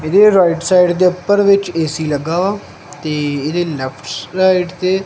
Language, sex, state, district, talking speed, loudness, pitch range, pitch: Punjabi, male, Punjab, Kapurthala, 165 wpm, -15 LUFS, 155-185 Hz, 180 Hz